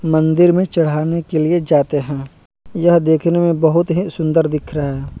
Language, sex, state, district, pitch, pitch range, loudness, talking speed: Hindi, male, Bihar, Kaimur, 160 Hz, 155-170 Hz, -15 LUFS, 185 wpm